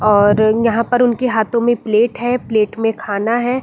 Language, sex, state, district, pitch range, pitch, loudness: Hindi, female, Uttar Pradesh, Deoria, 215-240 Hz, 230 Hz, -15 LUFS